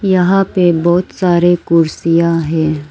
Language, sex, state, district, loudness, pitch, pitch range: Hindi, female, Arunachal Pradesh, Lower Dibang Valley, -13 LUFS, 170 Hz, 165-180 Hz